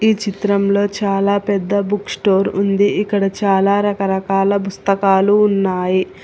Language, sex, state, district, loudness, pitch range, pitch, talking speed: Telugu, female, Telangana, Hyderabad, -16 LUFS, 195-205 Hz, 200 Hz, 115 wpm